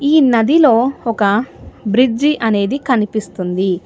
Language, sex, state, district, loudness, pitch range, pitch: Telugu, female, Telangana, Hyderabad, -14 LUFS, 205-270 Hz, 230 Hz